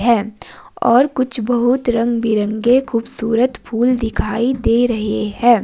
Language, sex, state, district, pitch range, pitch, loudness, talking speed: Hindi, female, Himachal Pradesh, Shimla, 225-245 Hz, 235 Hz, -17 LUFS, 140 wpm